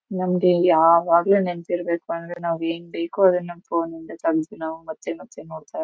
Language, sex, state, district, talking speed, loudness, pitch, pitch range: Kannada, female, Karnataka, Mysore, 145 wpm, -22 LUFS, 170 Hz, 165-180 Hz